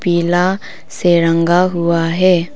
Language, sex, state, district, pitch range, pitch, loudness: Hindi, female, Arunachal Pradesh, Papum Pare, 170-180 Hz, 175 Hz, -14 LUFS